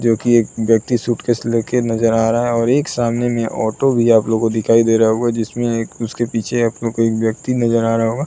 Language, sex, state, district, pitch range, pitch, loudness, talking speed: Hindi, male, Uttar Pradesh, Muzaffarnagar, 115-120 Hz, 115 Hz, -16 LUFS, 260 wpm